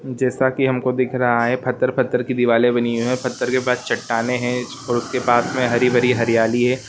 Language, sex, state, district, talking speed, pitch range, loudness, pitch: Hindi, male, Chhattisgarh, Rajnandgaon, 220 wpm, 120-130 Hz, -19 LUFS, 125 Hz